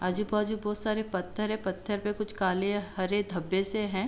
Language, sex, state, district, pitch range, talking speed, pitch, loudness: Hindi, female, Uttar Pradesh, Jalaun, 190-210 Hz, 190 wpm, 205 Hz, -31 LUFS